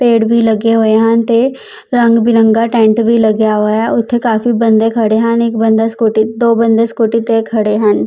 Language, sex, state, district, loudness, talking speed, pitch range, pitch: Punjabi, female, Chandigarh, Chandigarh, -11 LUFS, 195 wpm, 220-230 Hz, 225 Hz